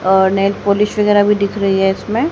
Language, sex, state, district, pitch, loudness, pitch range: Hindi, female, Haryana, Charkhi Dadri, 200 Hz, -14 LUFS, 195-210 Hz